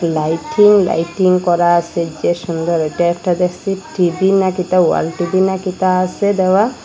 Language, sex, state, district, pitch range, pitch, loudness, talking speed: Bengali, female, Assam, Hailakandi, 170-190 Hz, 180 Hz, -15 LUFS, 160 wpm